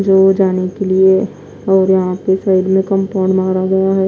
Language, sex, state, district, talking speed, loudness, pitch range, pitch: Hindi, female, Odisha, Nuapada, 190 wpm, -13 LUFS, 190-195 Hz, 190 Hz